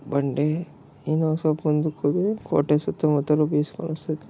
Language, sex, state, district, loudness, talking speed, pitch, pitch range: Kannada, male, Karnataka, Bellary, -24 LUFS, 140 wpm, 155 Hz, 150-160 Hz